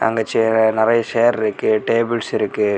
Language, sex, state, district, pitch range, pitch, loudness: Tamil, male, Tamil Nadu, Kanyakumari, 110-115 Hz, 110 Hz, -17 LUFS